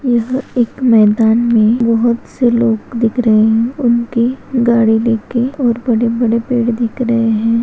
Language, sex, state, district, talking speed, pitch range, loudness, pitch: Hindi, female, Maharashtra, Sindhudurg, 155 wpm, 230-240 Hz, -13 LUFS, 235 Hz